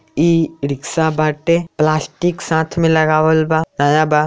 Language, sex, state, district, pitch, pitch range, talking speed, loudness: Bhojpuri, male, Bihar, Saran, 160 Hz, 155-165 Hz, 125 wpm, -16 LUFS